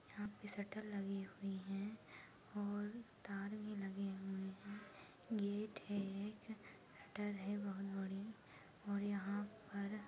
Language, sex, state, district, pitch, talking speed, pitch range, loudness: Hindi, female, Uttarakhand, Tehri Garhwal, 200 Hz, 130 wpm, 195-210 Hz, -47 LUFS